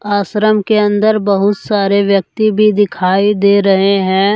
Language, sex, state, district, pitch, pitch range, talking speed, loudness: Hindi, male, Jharkhand, Deoghar, 205 Hz, 195-210 Hz, 150 wpm, -12 LUFS